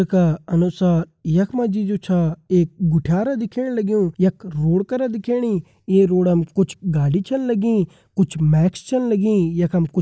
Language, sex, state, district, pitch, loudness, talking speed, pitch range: Garhwali, male, Uttarakhand, Uttarkashi, 185 Hz, -19 LUFS, 160 wpm, 170-215 Hz